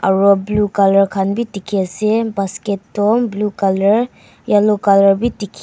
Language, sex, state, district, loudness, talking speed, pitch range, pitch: Nagamese, female, Nagaland, Kohima, -15 LUFS, 160 wpm, 195-210 Hz, 200 Hz